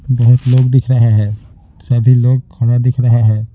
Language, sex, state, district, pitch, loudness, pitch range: Hindi, male, Bihar, Patna, 120 Hz, -12 LUFS, 110-125 Hz